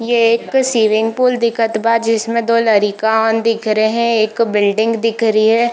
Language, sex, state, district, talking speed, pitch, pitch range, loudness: Hindi, female, Bihar, East Champaran, 170 wpm, 225 Hz, 220-230 Hz, -14 LUFS